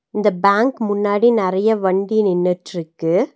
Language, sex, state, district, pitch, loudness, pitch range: Tamil, female, Tamil Nadu, Nilgiris, 205 Hz, -17 LUFS, 185-220 Hz